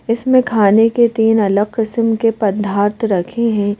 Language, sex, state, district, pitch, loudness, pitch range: Hindi, female, Madhya Pradesh, Bhopal, 225 Hz, -14 LUFS, 205-230 Hz